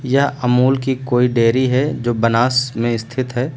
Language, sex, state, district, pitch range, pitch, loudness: Hindi, male, Uttar Pradesh, Lucknow, 120-130 Hz, 125 Hz, -17 LUFS